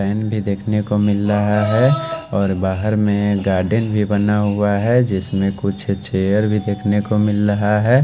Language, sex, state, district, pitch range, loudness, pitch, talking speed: Hindi, male, Haryana, Charkhi Dadri, 100-105 Hz, -18 LUFS, 105 Hz, 180 wpm